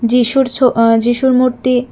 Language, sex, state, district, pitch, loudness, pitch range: Bengali, female, Tripura, West Tripura, 250 Hz, -12 LUFS, 240-255 Hz